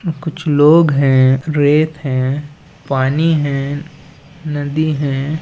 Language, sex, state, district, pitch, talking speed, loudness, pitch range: Chhattisgarhi, male, Chhattisgarh, Balrampur, 150 Hz, 100 wpm, -15 LUFS, 140-155 Hz